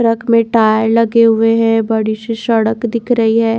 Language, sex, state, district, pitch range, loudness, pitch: Hindi, female, Haryana, Charkhi Dadri, 225-230 Hz, -13 LUFS, 225 Hz